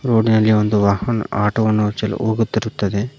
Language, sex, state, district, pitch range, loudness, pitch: Kannada, male, Karnataka, Koppal, 105-110 Hz, -17 LUFS, 110 Hz